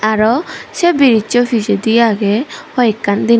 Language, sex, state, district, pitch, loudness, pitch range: Chakma, female, Tripura, Dhalai, 230 Hz, -13 LUFS, 215-245 Hz